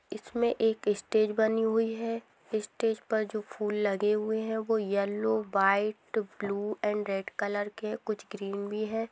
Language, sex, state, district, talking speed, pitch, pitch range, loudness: Hindi, female, Bihar, Samastipur, 170 wpm, 215 Hz, 205-220 Hz, -30 LUFS